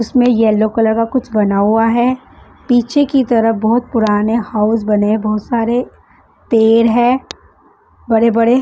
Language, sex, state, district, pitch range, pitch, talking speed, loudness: Hindi, female, Bihar, West Champaran, 220-245 Hz, 230 Hz, 145 wpm, -14 LUFS